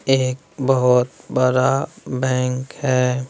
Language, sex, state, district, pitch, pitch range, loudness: Hindi, male, Bihar, West Champaran, 130 Hz, 125-135 Hz, -19 LUFS